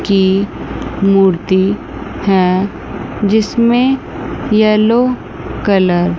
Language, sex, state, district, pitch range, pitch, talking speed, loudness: Hindi, female, Chandigarh, Chandigarh, 190-220 Hz, 200 Hz, 70 wpm, -14 LUFS